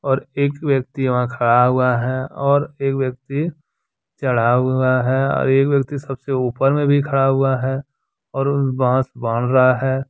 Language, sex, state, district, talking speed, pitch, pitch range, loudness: Hindi, male, Jharkhand, Deoghar, 165 wpm, 135 Hz, 130-140 Hz, -18 LUFS